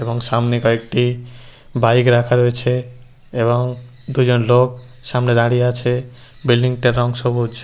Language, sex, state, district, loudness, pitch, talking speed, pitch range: Bengali, male, West Bengal, Paschim Medinipur, -17 LUFS, 125 Hz, 125 wpm, 120-125 Hz